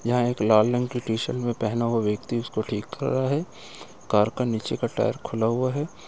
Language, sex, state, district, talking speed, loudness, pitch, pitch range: Hindi, male, Uttar Pradesh, Etah, 215 wpm, -25 LUFS, 120 Hz, 110-125 Hz